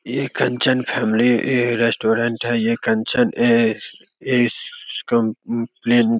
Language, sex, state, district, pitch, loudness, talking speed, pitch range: Hindi, male, Bihar, Begusarai, 120 Hz, -19 LUFS, 75 wpm, 115-130 Hz